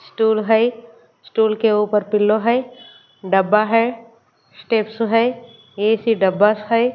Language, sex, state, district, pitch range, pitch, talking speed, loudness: Hindi, female, Haryana, Charkhi Dadri, 210-230 Hz, 225 Hz, 120 wpm, -18 LUFS